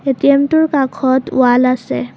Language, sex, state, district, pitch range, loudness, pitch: Assamese, female, Assam, Kamrup Metropolitan, 250-280 Hz, -13 LUFS, 260 Hz